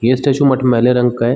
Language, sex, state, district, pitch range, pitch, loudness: Hindi, male, Chhattisgarh, Rajnandgaon, 120-130 Hz, 125 Hz, -13 LUFS